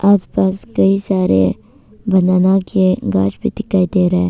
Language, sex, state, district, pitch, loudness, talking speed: Hindi, female, Arunachal Pradesh, Papum Pare, 180 Hz, -15 LUFS, 170 wpm